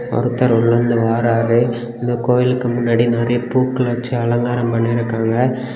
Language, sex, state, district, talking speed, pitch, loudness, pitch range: Tamil, male, Tamil Nadu, Kanyakumari, 115 wpm, 120 Hz, -17 LUFS, 115-125 Hz